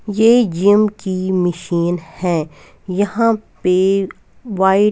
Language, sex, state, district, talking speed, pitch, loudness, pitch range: Hindi, female, Punjab, Fazilka, 110 wpm, 190 Hz, -16 LUFS, 180-210 Hz